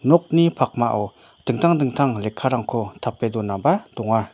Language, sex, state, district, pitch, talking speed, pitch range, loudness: Garo, male, Meghalaya, North Garo Hills, 125 Hz, 110 wpm, 110-155 Hz, -21 LUFS